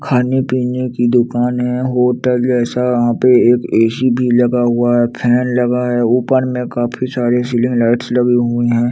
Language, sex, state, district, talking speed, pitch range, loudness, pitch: Hindi, male, Chandigarh, Chandigarh, 195 wpm, 120-125 Hz, -14 LUFS, 125 Hz